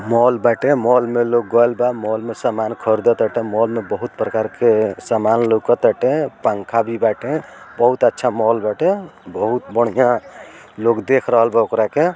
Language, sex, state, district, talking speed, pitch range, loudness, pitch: Bhojpuri, male, Bihar, East Champaran, 180 wpm, 115-125 Hz, -17 LUFS, 115 Hz